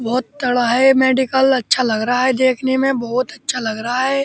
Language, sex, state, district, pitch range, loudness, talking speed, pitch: Hindi, male, Uttar Pradesh, Muzaffarnagar, 245-265 Hz, -16 LUFS, 240 wpm, 255 Hz